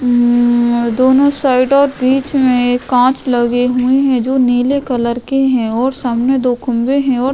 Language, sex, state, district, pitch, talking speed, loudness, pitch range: Hindi, female, Goa, North and South Goa, 255 Hz, 190 wpm, -13 LUFS, 245-265 Hz